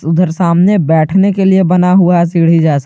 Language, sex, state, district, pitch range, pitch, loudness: Hindi, male, Jharkhand, Garhwa, 165-185 Hz, 175 Hz, -10 LUFS